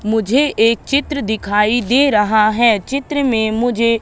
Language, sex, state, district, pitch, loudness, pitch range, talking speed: Hindi, female, Madhya Pradesh, Katni, 230 Hz, -15 LUFS, 220-275 Hz, 150 wpm